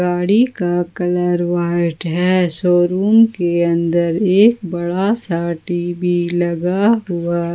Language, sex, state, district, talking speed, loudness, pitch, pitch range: Hindi, female, Jharkhand, Ranchi, 120 wpm, -16 LUFS, 175 Hz, 170-185 Hz